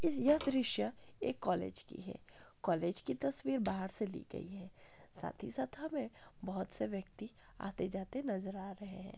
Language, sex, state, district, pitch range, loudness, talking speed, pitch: Hindi, female, Bihar, Kishanganj, 185-220 Hz, -38 LUFS, 170 wpm, 195 Hz